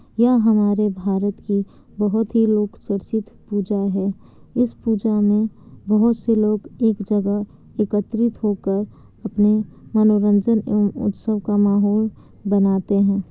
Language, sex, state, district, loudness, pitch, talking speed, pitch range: Hindi, female, Bihar, Kishanganj, -20 LUFS, 210 Hz, 125 wpm, 205-220 Hz